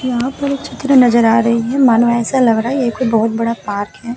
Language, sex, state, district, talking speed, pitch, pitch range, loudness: Hindi, female, Uttar Pradesh, Hamirpur, 275 wpm, 235 Hz, 230-255 Hz, -14 LUFS